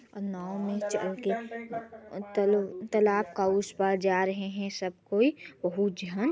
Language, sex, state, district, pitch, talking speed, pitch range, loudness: Hindi, female, Chhattisgarh, Sarguja, 200 Hz, 140 wpm, 195-210 Hz, -30 LUFS